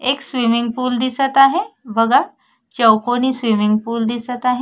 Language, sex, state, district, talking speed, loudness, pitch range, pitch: Marathi, female, Maharashtra, Sindhudurg, 145 wpm, -16 LUFS, 230-260 Hz, 245 Hz